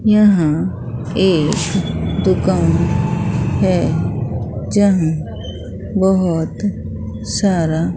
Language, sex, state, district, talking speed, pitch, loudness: Hindi, female, Bihar, Katihar, 55 wpm, 160 Hz, -17 LUFS